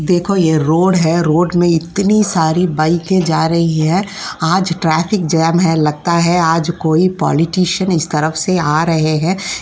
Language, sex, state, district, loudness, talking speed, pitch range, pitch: Hindi, female, Uttar Pradesh, Jyotiba Phule Nagar, -14 LUFS, 170 wpm, 160-180 Hz, 170 Hz